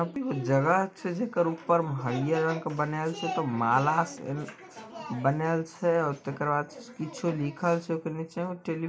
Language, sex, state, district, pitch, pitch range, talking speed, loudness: Maithili, male, Bihar, Samastipur, 160 Hz, 145-170 Hz, 90 wpm, -29 LUFS